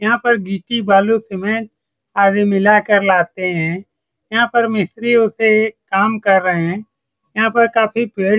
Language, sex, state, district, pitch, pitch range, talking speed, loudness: Hindi, male, Bihar, Saran, 210 Hz, 195-225 Hz, 170 wpm, -15 LUFS